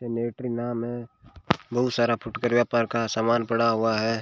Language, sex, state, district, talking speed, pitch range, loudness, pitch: Hindi, male, Rajasthan, Bikaner, 170 wpm, 115-120 Hz, -25 LUFS, 115 Hz